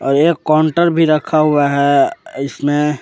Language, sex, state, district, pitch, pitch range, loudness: Hindi, male, Jharkhand, Ranchi, 155 Hz, 145-165 Hz, -14 LUFS